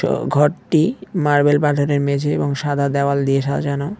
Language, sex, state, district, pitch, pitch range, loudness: Bengali, male, West Bengal, Cooch Behar, 145 Hz, 140-150 Hz, -18 LUFS